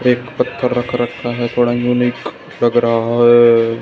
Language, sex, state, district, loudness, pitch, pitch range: Hindi, male, Haryana, Jhajjar, -15 LUFS, 120 Hz, 120-125 Hz